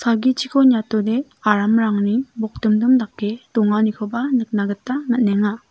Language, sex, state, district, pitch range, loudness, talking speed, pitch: Garo, female, Meghalaya, South Garo Hills, 210-250 Hz, -19 LUFS, 95 wpm, 225 Hz